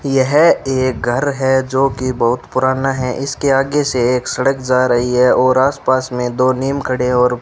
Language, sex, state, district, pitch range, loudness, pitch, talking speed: Hindi, male, Rajasthan, Bikaner, 125-135 Hz, -15 LUFS, 130 Hz, 200 wpm